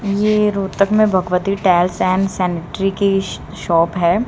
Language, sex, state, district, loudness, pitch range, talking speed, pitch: Hindi, female, Haryana, Rohtak, -16 LUFS, 180-200 Hz, 140 wpm, 195 Hz